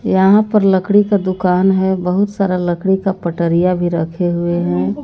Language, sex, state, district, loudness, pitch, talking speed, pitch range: Hindi, female, Jharkhand, Garhwa, -15 LUFS, 185 Hz, 180 wpm, 175-195 Hz